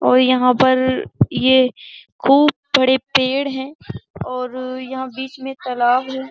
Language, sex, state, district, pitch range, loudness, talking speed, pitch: Hindi, female, Uttar Pradesh, Jyotiba Phule Nagar, 255-270 Hz, -17 LUFS, 135 wpm, 260 Hz